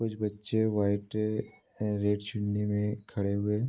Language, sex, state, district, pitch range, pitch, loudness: Hindi, male, Bihar, Bhagalpur, 105-110 Hz, 105 Hz, -31 LUFS